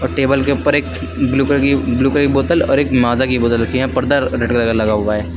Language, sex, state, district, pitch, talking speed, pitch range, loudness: Hindi, male, Uttar Pradesh, Lucknow, 130 Hz, 290 wpm, 120-135 Hz, -15 LUFS